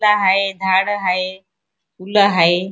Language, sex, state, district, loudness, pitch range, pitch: Marathi, female, Maharashtra, Chandrapur, -16 LUFS, 185-200 Hz, 190 Hz